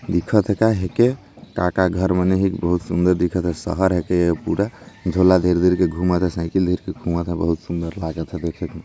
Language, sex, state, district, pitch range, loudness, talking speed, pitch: Chhattisgarhi, male, Chhattisgarh, Jashpur, 85-95 Hz, -20 LUFS, 245 wpm, 90 Hz